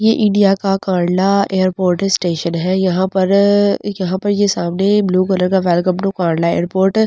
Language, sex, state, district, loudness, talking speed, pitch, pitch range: Hindi, female, Delhi, New Delhi, -15 LUFS, 185 wpm, 190 Hz, 180-200 Hz